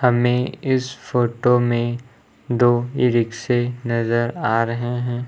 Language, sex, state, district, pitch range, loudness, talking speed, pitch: Hindi, male, Uttar Pradesh, Lucknow, 120-125 Hz, -20 LUFS, 115 wpm, 120 Hz